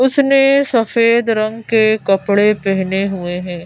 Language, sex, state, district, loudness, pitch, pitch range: Hindi, female, Madhya Pradesh, Bhopal, -14 LUFS, 215 Hz, 195-235 Hz